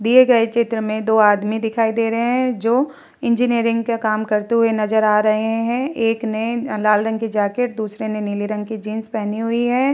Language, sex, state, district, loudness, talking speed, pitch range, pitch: Hindi, female, Bihar, Vaishali, -19 LUFS, 225 wpm, 215-235 Hz, 225 Hz